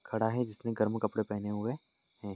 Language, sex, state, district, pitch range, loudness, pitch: Hindi, male, Maharashtra, Nagpur, 105-115 Hz, -34 LUFS, 110 Hz